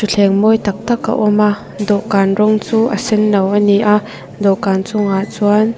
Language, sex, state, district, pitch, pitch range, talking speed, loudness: Mizo, female, Mizoram, Aizawl, 210 Hz, 200-215 Hz, 185 wpm, -14 LUFS